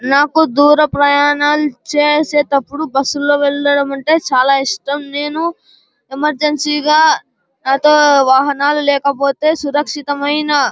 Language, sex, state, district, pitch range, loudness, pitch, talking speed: Telugu, male, Andhra Pradesh, Anantapur, 280-300 Hz, -13 LUFS, 290 Hz, 95 wpm